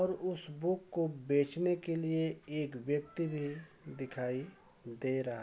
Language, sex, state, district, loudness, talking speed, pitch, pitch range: Hindi, male, Uttar Pradesh, Ghazipur, -36 LUFS, 155 wpm, 150 Hz, 135-170 Hz